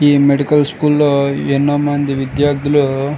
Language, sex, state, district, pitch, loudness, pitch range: Telugu, male, Andhra Pradesh, Srikakulam, 145 Hz, -14 LUFS, 140-145 Hz